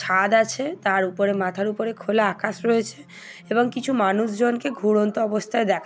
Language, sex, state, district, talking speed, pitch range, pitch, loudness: Bengali, female, West Bengal, Paschim Medinipur, 155 wpm, 195-230 Hz, 215 Hz, -22 LUFS